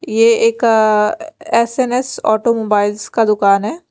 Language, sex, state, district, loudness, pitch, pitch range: Hindi, female, Bihar, Patna, -14 LUFS, 225 Hz, 210-245 Hz